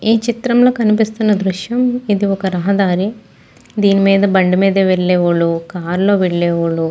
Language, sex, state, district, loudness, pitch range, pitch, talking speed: Telugu, female, Andhra Pradesh, Guntur, -14 LUFS, 180-215 Hz, 195 Hz, 150 wpm